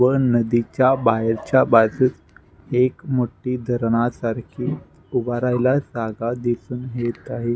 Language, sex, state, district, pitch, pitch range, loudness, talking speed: Marathi, male, Maharashtra, Nagpur, 120 Hz, 115-125 Hz, -21 LUFS, 105 wpm